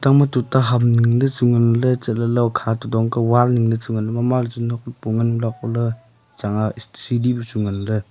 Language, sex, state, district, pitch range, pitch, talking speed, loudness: Wancho, male, Arunachal Pradesh, Longding, 115-125 Hz, 115 Hz, 200 wpm, -19 LUFS